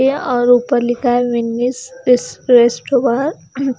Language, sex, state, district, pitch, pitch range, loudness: Hindi, female, Chandigarh, Chandigarh, 245 Hz, 245-260 Hz, -15 LUFS